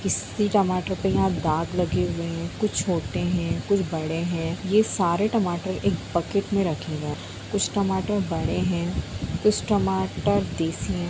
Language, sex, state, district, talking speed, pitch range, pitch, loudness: Hindi, female, Jharkhand, Sahebganj, 160 wpm, 150-195 Hz, 175 Hz, -25 LUFS